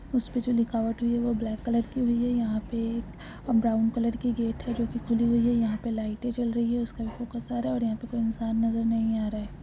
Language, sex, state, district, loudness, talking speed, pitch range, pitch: Hindi, female, Uttarakhand, Tehri Garhwal, -28 LUFS, 280 wpm, 225-235 Hz, 230 Hz